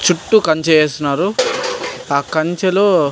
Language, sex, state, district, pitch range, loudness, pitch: Telugu, male, Andhra Pradesh, Anantapur, 155-220 Hz, -15 LUFS, 175 Hz